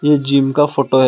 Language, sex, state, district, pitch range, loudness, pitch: Hindi, male, Assam, Kamrup Metropolitan, 135-145 Hz, -14 LUFS, 140 Hz